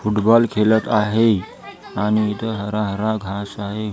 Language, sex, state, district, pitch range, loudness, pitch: Marathi, female, Maharashtra, Gondia, 105-110 Hz, -19 LUFS, 105 Hz